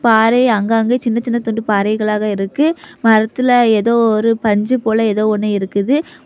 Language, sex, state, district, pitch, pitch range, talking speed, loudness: Tamil, female, Tamil Nadu, Kanyakumari, 225 Hz, 215-235 Hz, 145 wpm, -15 LUFS